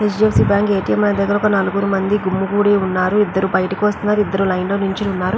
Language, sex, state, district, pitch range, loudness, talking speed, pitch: Telugu, female, Andhra Pradesh, Chittoor, 190-205 Hz, -17 LUFS, 210 wpm, 200 Hz